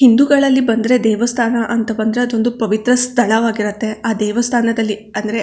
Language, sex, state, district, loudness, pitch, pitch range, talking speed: Kannada, female, Karnataka, Chamarajanagar, -15 LUFS, 230 Hz, 220-245 Hz, 120 wpm